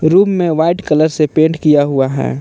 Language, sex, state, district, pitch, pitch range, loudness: Hindi, male, Jharkhand, Palamu, 155 Hz, 150-170 Hz, -13 LUFS